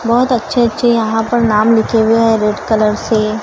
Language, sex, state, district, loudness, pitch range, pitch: Hindi, female, Maharashtra, Gondia, -13 LUFS, 215-235 Hz, 225 Hz